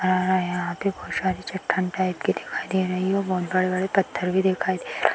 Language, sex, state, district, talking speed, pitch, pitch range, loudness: Hindi, female, Uttar Pradesh, Hamirpur, 235 wpm, 185 Hz, 180-190 Hz, -24 LUFS